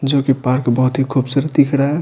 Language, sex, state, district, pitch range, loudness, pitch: Hindi, male, Bihar, Patna, 130-140 Hz, -16 LUFS, 135 Hz